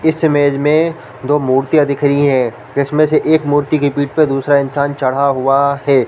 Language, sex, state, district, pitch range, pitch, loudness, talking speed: Hindi, male, Chhattisgarh, Bilaspur, 135-150 Hz, 140 Hz, -14 LUFS, 205 wpm